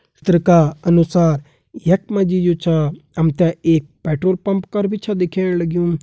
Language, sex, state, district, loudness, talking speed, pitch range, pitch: Hindi, male, Uttarakhand, Uttarkashi, -17 LUFS, 180 wpm, 160-185 Hz, 170 Hz